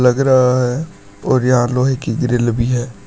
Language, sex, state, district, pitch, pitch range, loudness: Hindi, male, Uttar Pradesh, Shamli, 125 Hz, 120-130 Hz, -15 LUFS